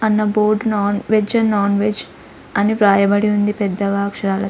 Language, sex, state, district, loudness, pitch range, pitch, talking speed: Telugu, female, Andhra Pradesh, Sri Satya Sai, -17 LUFS, 200-215 Hz, 205 Hz, 175 wpm